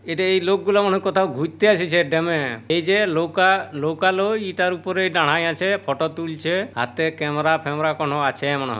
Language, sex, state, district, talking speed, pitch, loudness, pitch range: Bengali, male, West Bengal, Purulia, 175 wpm, 165 Hz, -20 LUFS, 155-190 Hz